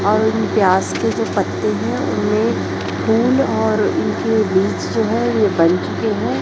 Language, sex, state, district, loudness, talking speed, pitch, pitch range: Hindi, female, Chhattisgarh, Raipur, -17 LUFS, 160 wpm, 220 Hz, 195-230 Hz